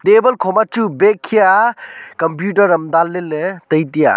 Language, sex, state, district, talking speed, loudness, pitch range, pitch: Wancho, male, Arunachal Pradesh, Longding, 185 wpm, -14 LUFS, 165-225 Hz, 200 Hz